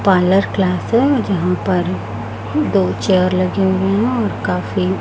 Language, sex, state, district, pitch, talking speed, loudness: Hindi, female, Chhattisgarh, Raipur, 180 Hz, 155 wpm, -17 LUFS